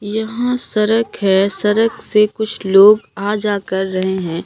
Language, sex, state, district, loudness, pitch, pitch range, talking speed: Hindi, female, Bihar, Katihar, -15 LUFS, 210 Hz, 195-220 Hz, 160 wpm